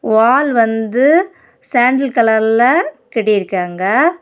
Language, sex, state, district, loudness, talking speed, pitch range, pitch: Tamil, female, Tamil Nadu, Kanyakumari, -13 LUFS, 70 wpm, 220-295 Hz, 240 Hz